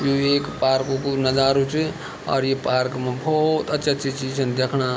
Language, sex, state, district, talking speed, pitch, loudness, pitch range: Garhwali, male, Uttarakhand, Tehri Garhwal, 180 wpm, 135 Hz, -22 LUFS, 130-140 Hz